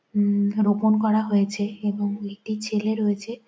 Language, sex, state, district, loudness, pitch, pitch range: Bengali, female, West Bengal, Jhargram, -23 LUFS, 210 Hz, 205-215 Hz